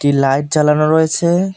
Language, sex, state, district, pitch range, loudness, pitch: Bengali, male, West Bengal, Cooch Behar, 145-170 Hz, -14 LUFS, 155 Hz